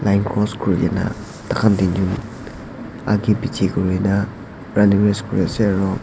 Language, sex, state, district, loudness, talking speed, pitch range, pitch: Nagamese, male, Nagaland, Dimapur, -19 LUFS, 130 wpm, 95-105 Hz, 105 Hz